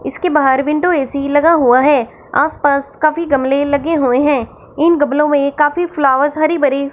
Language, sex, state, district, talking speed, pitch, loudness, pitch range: Hindi, female, Punjab, Fazilka, 175 wpm, 290 Hz, -14 LUFS, 280-310 Hz